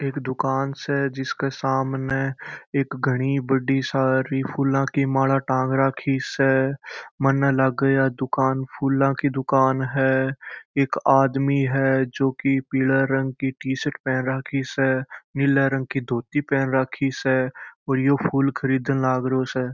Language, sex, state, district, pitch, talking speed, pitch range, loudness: Marwari, male, Rajasthan, Churu, 135 Hz, 140 wpm, 130-135 Hz, -22 LUFS